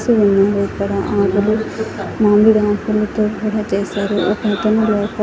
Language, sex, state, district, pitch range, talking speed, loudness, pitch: Telugu, female, Andhra Pradesh, Anantapur, 200-215 Hz, 105 wpm, -16 LUFS, 210 Hz